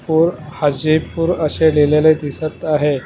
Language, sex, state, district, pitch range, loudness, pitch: Marathi, male, Maharashtra, Mumbai Suburban, 150-160 Hz, -16 LUFS, 155 Hz